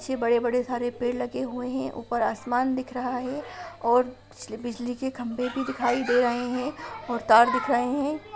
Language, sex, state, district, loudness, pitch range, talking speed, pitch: Hindi, female, Bihar, Sitamarhi, -26 LUFS, 240-255 Hz, 185 wpm, 245 Hz